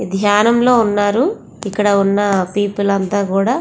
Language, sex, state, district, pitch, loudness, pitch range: Telugu, female, Andhra Pradesh, Visakhapatnam, 205 Hz, -15 LUFS, 195-215 Hz